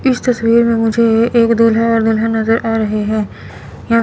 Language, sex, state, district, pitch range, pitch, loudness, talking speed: Hindi, female, Chandigarh, Chandigarh, 225-230 Hz, 230 Hz, -13 LUFS, 195 wpm